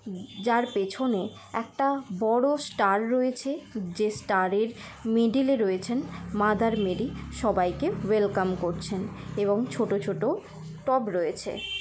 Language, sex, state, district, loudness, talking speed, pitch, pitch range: Bengali, female, West Bengal, Kolkata, -27 LUFS, 115 wpm, 210 Hz, 195-240 Hz